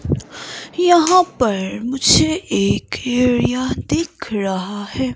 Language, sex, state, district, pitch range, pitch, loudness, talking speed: Hindi, female, Himachal Pradesh, Shimla, 205-325 Hz, 250 Hz, -17 LUFS, 95 wpm